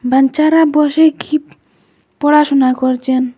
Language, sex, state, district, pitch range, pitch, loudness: Bengali, female, Assam, Hailakandi, 255-305 Hz, 285 Hz, -13 LUFS